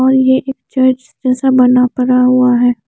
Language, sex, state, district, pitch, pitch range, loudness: Hindi, female, Chandigarh, Chandigarh, 255 Hz, 250-260 Hz, -12 LUFS